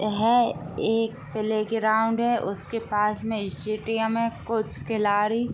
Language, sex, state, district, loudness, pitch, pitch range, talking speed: Hindi, female, Uttar Pradesh, Gorakhpur, -25 LUFS, 220 Hz, 215-230 Hz, 130 wpm